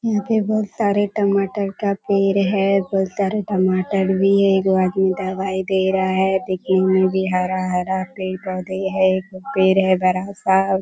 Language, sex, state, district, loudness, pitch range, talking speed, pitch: Hindi, female, Bihar, Kishanganj, -19 LUFS, 190-200 Hz, 155 wpm, 190 Hz